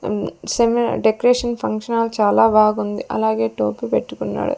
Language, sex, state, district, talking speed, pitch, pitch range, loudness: Telugu, female, Andhra Pradesh, Sri Satya Sai, 130 wpm, 215 Hz, 200-235 Hz, -18 LUFS